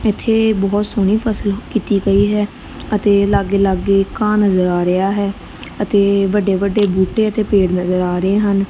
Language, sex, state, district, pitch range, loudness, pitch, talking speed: Punjabi, female, Punjab, Kapurthala, 195-210 Hz, -15 LUFS, 200 Hz, 175 wpm